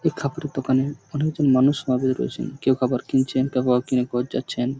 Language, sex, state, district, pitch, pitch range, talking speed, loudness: Bengali, male, West Bengal, Purulia, 130 Hz, 125-140 Hz, 190 wpm, -22 LUFS